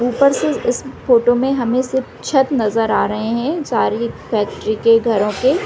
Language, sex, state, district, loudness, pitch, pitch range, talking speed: Hindi, female, Chhattisgarh, Raigarh, -17 LUFS, 240 Hz, 225-265 Hz, 180 wpm